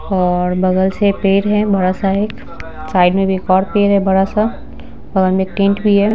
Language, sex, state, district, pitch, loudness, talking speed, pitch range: Hindi, female, Bihar, Patna, 195 Hz, -15 LUFS, 205 wpm, 185-200 Hz